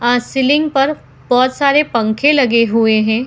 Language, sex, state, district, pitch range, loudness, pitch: Hindi, female, Bihar, Saharsa, 230-285 Hz, -13 LUFS, 250 Hz